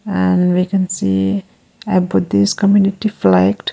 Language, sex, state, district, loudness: English, female, Arunachal Pradesh, Lower Dibang Valley, -15 LUFS